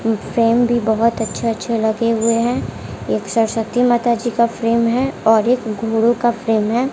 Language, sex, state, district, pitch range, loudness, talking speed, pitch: Hindi, female, Bihar, West Champaran, 220-240 Hz, -17 LUFS, 190 wpm, 230 Hz